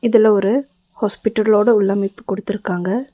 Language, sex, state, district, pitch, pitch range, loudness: Tamil, female, Tamil Nadu, Nilgiris, 210 Hz, 195-230 Hz, -17 LUFS